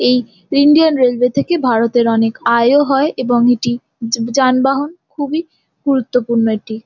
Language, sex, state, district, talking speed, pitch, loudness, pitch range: Bengali, female, West Bengal, Jalpaiguri, 140 wpm, 250 Hz, -14 LUFS, 235-280 Hz